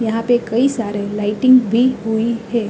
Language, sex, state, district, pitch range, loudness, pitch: Hindi, female, Uttar Pradesh, Hamirpur, 220-245 Hz, -16 LUFS, 230 Hz